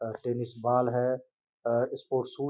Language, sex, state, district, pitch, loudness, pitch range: Hindi, male, Uttar Pradesh, Gorakhpur, 125 Hz, -30 LUFS, 120-130 Hz